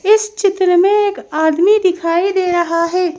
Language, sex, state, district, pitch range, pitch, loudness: Hindi, female, Madhya Pradesh, Bhopal, 345-400 Hz, 365 Hz, -14 LUFS